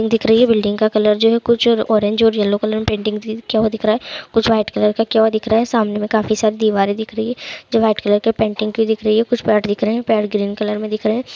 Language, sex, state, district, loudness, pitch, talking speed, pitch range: Hindi, female, Chhattisgarh, Sukma, -16 LUFS, 220 Hz, 310 wpm, 215-225 Hz